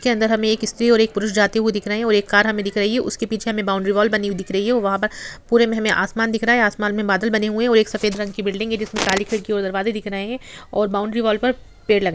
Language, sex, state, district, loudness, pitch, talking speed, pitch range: Hindi, female, Bihar, Sitamarhi, -19 LUFS, 215 Hz, 320 wpm, 205-225 Hz